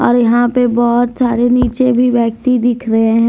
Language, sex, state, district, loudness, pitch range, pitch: Hindi, female, Jharkhand, Deoghar, -13 LUFS, 235-245 Hz, 240 Hz